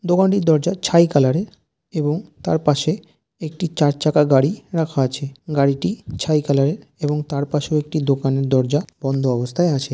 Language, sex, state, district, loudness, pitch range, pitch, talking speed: Bengali, male, West Bengal, Jalpaiguri, -19 LUFS, 140-165 Hz, 150 Hz, 165 wpm